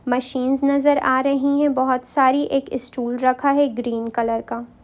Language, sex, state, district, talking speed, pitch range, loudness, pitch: Hindi, female, Bihar, Sitamarhi, 175 wpm, 245-280 Hz, -20 LUFS, 260 Hz